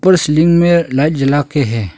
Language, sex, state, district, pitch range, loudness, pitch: Hindi, male, Arunachal Pradesh, Longding, 135-170 Hz, -12 LUFS, 150 Hz